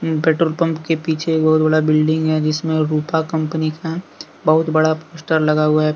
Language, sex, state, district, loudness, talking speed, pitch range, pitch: Hindi, male, Jharkhand, Deoghar, -17 LUFS, 190 wpm, 155-160 Hz, 155 Hz